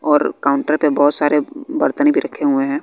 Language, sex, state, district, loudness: Hindi, female, Bihar, West Champaran, -17 LUFS